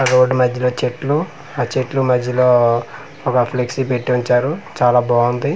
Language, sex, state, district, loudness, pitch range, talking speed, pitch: Telugu, male, Andhra Pradesh, Manyam, -17 LUFS, 125-135 Hz, 130 wpm, 125 Hz